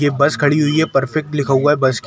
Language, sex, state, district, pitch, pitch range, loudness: Hindi, male, Chhattisgarh, Sukma, 145 Hz, 135-150 Hz, -16 LUFS